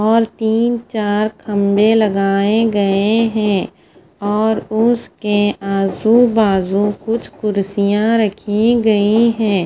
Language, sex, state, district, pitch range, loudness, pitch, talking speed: Hindi, female, Punjab, Fazilka, 200-225 Hz, -15 LUFS, 215 Hz, 100 wpm